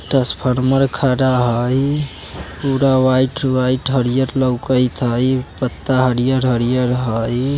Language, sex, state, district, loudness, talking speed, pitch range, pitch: Bajjika, male, Bihar, Vaishali, -17 LUFS, 95 wpm, 125-130 Hz, 130 Hz